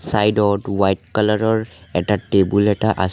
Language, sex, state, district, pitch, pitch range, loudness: Assamese, male, Assam, Sonitpur, 105 Hz, 95-110 Hz, -18 LUFS